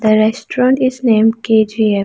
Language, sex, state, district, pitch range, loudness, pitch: English, female, Arunachal Pradesh, Lower Dibang Valley, 215-250 Hz, -13 LUFS, 220 Hz